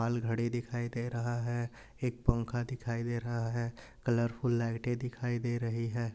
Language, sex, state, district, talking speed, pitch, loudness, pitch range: Hindi, male, Uttar Pradesh, Budaun, 175 wpm, 120 Hz, -35 LUFS, 115-120 Hz